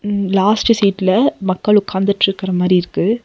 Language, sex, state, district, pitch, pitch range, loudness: Tamil, female, Tamil Nadu, Nilgiris, 200 Hz, 190-210 Hz, -15 LUFS